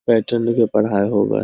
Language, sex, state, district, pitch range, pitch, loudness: Magahi, male, Bihar, Lakhisarai, 100-115 Hz, 110 Hz, -18 LUFS